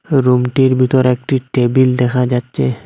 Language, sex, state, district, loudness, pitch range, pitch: Bengali, male, Assam, Hailakandi, -14 LUFS, 125-130 Hz, 125 Hz